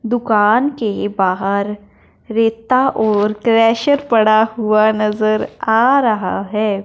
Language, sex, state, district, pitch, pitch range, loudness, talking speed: Hindi, female, Punjab, Fazilka, 220 Hz, 210-230 Hz, -15 LUFS, 105 wpm